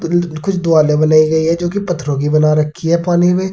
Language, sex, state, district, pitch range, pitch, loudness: Hindi, male, Uttar Pradesh, Saharanpur, 155-175 Hz, 165 Hz, -14 LUFS